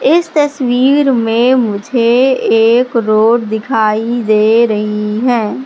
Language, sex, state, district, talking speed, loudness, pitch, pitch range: Hindi, female, Madhya Pradesh, Katni, 105 wpm, -12 LUFS, 235 Hz, 220-255 Hz